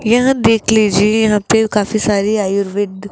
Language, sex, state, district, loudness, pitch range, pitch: Hindi, female, Rajasthan, Jaipur, -14 LUFS, 205-220 Hz, 215 Hz